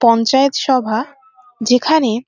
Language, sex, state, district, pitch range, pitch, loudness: Bengali, female, West Bengal, Kolkata, 235-270 Hz, 250 Hz, -15 LUFS